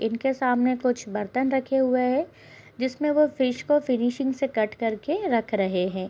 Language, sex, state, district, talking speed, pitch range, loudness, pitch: Hindi, female, Uttar Pradesh, Gorakhpur, 185 wpm, 225-270 Hz, -25 LUFS, 255 Hz